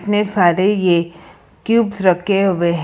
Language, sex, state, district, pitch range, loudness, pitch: Hindi, female, Karnataka, Bangalore, 175-205 Hz, -16 LUFS, 190 Hz